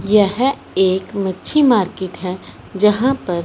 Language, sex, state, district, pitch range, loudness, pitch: Hindi, male, Punjab, Fazilka, 185-240 Hz, -17 LUFS, 195 Hz